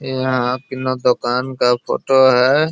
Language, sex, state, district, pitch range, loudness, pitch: Hindi, male, Bihar, Araria, 125-130 Hz, -16 LUFS, 130 Hz